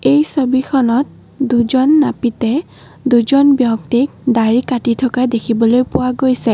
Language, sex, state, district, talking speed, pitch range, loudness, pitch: Assamese, female, Assam, Kamrup Metropolitan, 110 wpm, 235-270 Hz, -14 LUFS, 255 Hz